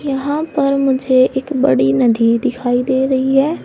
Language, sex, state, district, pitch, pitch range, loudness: Hindi, female, Uttar Pradesh, Saharanpur, 265 Hz, 245-275 Hz, -15 LUFS